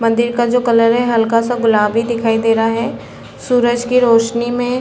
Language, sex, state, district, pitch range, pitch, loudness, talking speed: Hindi, female, Chhattisgarh, Balrampur, 230-240 Hz, 235 Hz, -14 LUFS, 210 wpm